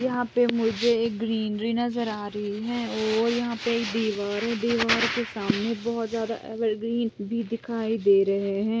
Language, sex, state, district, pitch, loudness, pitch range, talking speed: Hindi, female, Andhra Pradesh, Chittoor, 225 Hz, -26 LUFS, 215-235 Hz, 165 wpm